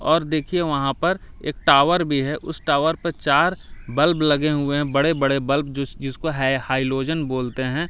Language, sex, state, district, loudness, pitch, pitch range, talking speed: Hindi, male, Delhi, New Delhi, -21 LUFS, 145 Hz, 135-160 Hz, 180 wpm